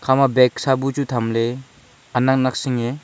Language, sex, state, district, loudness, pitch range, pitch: Wancho, male, Arunachal Pradesh, Longding, -19 LUFS, 125-135 Hz, 130 Hz